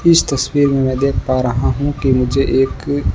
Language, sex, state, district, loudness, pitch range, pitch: Hindi, male, Rajasthan, Bikaner, -16 LUFS, 125-140 Hz, 130 Hz